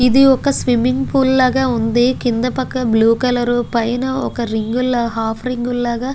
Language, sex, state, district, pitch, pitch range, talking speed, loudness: Telugu, female, Andhra Pradesh, Guntur, 245 Hz, 235-260 Hz, 165 wpm, -16 LUFS